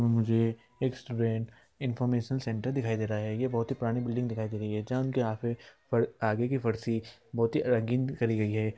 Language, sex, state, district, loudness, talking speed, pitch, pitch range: Hindi, male, Bihar, East Champaran, -31 LUFS, 190 wpm, 115 Hz, 115-125 Hz